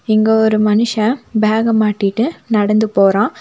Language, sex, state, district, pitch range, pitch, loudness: Tamil, female, Tamil Nadu, Nilgiris, 210-225 Hz, 215 Hz, -14 LUFS